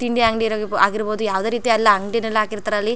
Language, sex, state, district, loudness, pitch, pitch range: Kannada, female, Karnataka, Chamarajanagar, -19 LUFS, 215 Hz, 210-225 Hz